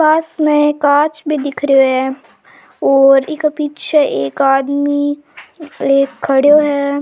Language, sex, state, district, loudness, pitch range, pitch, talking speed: Rajasthani, female, Rajasthan, Churu, -13 LUFS, 275-300 Hz, 285 Hz, 130 wpm